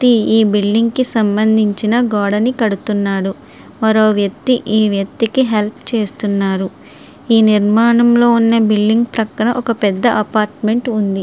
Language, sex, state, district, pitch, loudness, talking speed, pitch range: Telugu, female, Andhra Pradesh, Srikakulam, 220 Hz, -14 LUFS, 110 wpm, 205-230 Hz